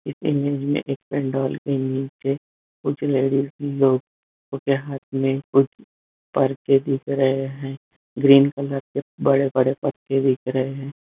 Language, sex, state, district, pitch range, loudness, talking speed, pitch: Hindi, male, Bihar, Jamui, 135-140 Hz, -22 LUFS, 140 wpm, 135 Hz